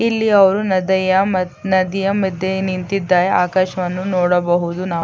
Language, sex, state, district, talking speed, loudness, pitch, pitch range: Kannada, female, Karnataka, Chamarajanagar, 120 wpm, -17 LUFS, 185 Hz, 180-195 Hz